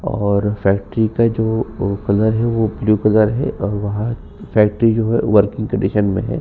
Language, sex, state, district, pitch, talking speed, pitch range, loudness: Hindi, male, Uttar Pradesh, Jyotiba Phule Nagar, 110 Hz, 180 wpm, 100-115 Hz, -17 LUFS